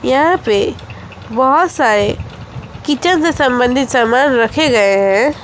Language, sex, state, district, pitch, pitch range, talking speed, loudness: Hindi, female, West Bengal, Alipurduar, 270 Hz, 235-330 Hz, 120 wpm, -13 LUFS